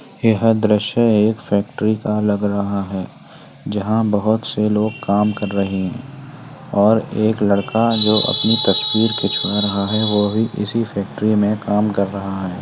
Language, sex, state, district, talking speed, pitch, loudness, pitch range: Hindi, male, Uttar Pradesh, Etah, 160 wpm, 105 Hz, -17 LUFS, 100-110 Hz